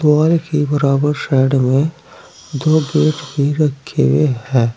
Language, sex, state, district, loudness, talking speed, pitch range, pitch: Hindi, male, Uttar Pradesh, Saharanpur, -16 LUFS, 125 wpm, 135-155 Hz, 145 Hz